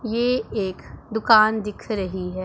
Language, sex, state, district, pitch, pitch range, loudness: Hindi, female, Punjab, Pathankot, 215 Hz, 190-225 Hz, -22 LUFS